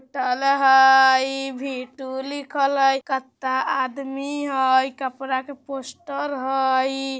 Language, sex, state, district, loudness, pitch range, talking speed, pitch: Bajjika, female, Bihar, Vaishali, -21 LUFS, 260-275 Hz, 125 wpm, 270 Hz